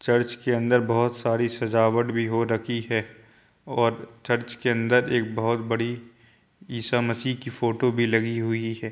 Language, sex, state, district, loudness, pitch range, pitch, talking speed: Hindi, male, Uttar Pradesh, Jyotiba Phule Nagar, -25 LUFS, 115-120 Hz, 115 Hz, 160 wpm